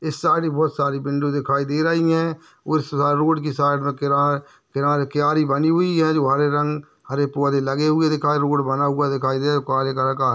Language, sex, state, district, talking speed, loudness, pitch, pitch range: Hindi, male, Maharashtra, Nagpur, 215 wpm, -20 LUFS, 145 Hz, 140-155 Hz